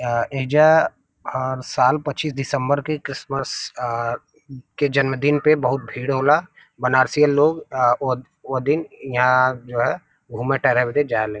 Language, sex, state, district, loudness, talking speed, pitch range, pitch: Bhojpuri, male, Uttar Pradesh, Varanasi, -20 LUFS, 130 wpm, 125-145 Hz, 135 Hz